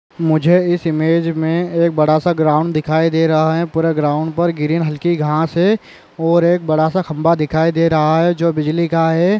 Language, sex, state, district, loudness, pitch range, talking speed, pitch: Hindi, male, Chhattisgarh, Korba, -15 LUFS, 155-170 Hz, 205 wpm, 165 Hz